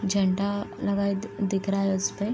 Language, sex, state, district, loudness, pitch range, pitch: Hindi, female, Bihar, East Champaran, -27 LUFS, 195-205 Hz, 200 Hz